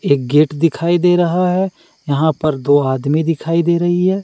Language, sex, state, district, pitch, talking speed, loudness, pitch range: Hindi, male, Jharkhand, Deoghar, 165 Hz, 200 wpm, -15 LUFS, 145-175 Hz